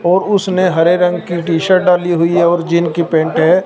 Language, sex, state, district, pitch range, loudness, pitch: Hindi, male, Punjab, Fazilka, 170-180 Hz, -13 LUFS, 175 Hz